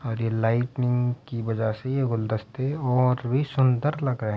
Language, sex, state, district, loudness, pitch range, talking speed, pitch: Hindi, male, Uttar Pradesh, Budaun, -25 LUFS, 115-130 Hz, 205 wpm, 125 Hz